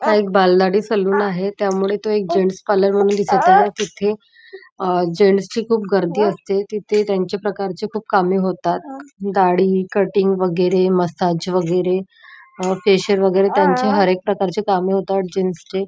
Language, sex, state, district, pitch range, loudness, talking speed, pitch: Marathi, female, Maharashtra, Nagpur, 185-205 Hz, -17 LUFS, 150 wpm, 195 Hz